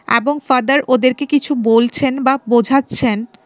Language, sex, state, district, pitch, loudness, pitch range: Bengali, female, Tripura, West Tripura, 255 Hz, -15 LUFS, 240-275 Hz